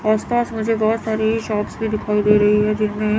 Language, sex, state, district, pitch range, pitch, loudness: Hindi, female, Chandigarh, Chandigarh, 210-220 Hz, 215 Hz, -19 LUFS